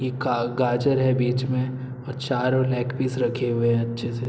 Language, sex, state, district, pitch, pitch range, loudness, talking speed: Hindi, male, Bihar, Araria, 125 Hz, 120-130 Hz, -24 LUFS, 210 wpm